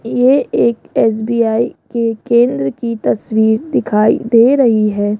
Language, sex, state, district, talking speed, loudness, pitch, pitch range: Hindi, female, Rajasthan, Jaipur, 125 wpm, -14 LUFS, 230 Hz, 220-240 Hz